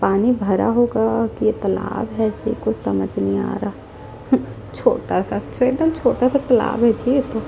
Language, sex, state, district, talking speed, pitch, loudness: Hindi, female, Chhattisgarh, Jashpur, 195 wpm, 225 Hz, -19 LUFS